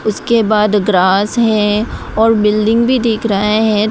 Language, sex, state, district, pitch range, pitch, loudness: Hindi, female, Tripura, West Tripura, 210-225 Hz, 215 Hz, -13 LUFS